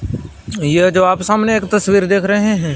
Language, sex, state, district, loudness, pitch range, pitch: Hindi, male, Punjab, Fazilka, -14 LUFS, 185-210 Hz, 200 Hz